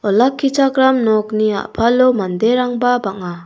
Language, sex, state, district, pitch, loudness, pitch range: Garo, female, Meghalaya, South Garo Hills, 235 Hz, -15 LUFS, 210-255 Hz